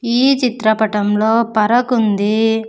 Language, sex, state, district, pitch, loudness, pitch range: Telugu, female, Andhra Pradesh, Sri Satya Sai, 225 Hz, -15 LUFS, 215-240 Hz